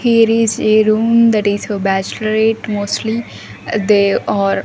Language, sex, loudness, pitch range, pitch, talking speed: English, female, -14 LUFS, 205-225 Hz, 215 Hz, 155 wpm